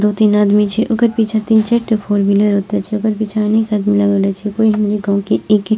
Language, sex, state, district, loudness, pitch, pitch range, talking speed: Maithili, female, Bihar, Purnia, -14 LUFS, 210 Hz, 205-220 Hz, 260 wpm